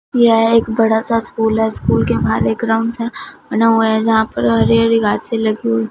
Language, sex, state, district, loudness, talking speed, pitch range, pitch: Hindi, female, Punjab, Fazilka, -15 LUFS, 225 wpm, 220-230 Hz, 225 Hz